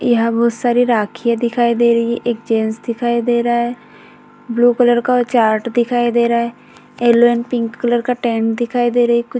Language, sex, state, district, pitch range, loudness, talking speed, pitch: Hindi, female, Bihar, Vaishali, 235-240 Hz, -16 LUFS, 215 wpm, 235 Hz